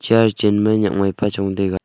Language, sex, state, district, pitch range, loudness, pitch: Wancho, male, Arunachal Pradesh, Longding, 95-110 Hz, -18 LUFS, 105 Hz